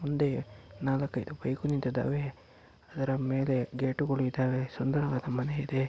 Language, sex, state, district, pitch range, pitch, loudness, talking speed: Kannada, male, Karnataka, Mysore, 125-140 Hz, 135 Hz, -32 LUFS, 110 wpm